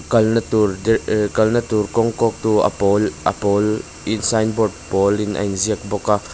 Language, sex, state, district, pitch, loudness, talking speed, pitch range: Mizo, male, Mizoram, Aizawl, 105 Hz, -18 LUFS, 215 wpm, 100-110 Hz